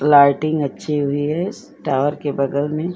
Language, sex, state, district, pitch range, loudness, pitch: Hindi, female, Uttar Pradesh, Etah, 140-155 Hz, -19 LUFS, 145 Hz